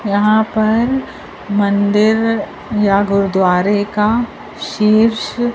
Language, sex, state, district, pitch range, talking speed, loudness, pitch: Hindi, male, Madhya Pradesh, Dhar, 200-225 Hz, 75 wpm, -15 LUFS, 210 Hz